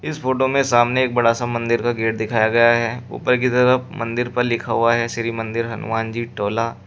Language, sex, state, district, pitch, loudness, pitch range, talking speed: Hindi, male, Uttar Pradesh, Shamli, 115 Hz, -19 LUFS, 115-125 Hz, 225 wpm